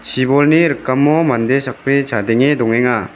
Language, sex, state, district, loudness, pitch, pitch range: Garo, male, Meghalaya, West Garo Hills, -14 LUFS, 135 Hz, 120-145 Hz